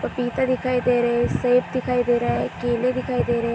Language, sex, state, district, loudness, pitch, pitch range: Hindi, female, Jharkhand, Sahebganj, -22 LUFS, 245 Hz, 240-250 Hz